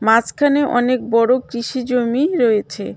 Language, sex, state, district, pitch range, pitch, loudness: Bengali, female, West Bengal, Cooch Behar, 230-260 Hz, 245 Hz, -17 LUFS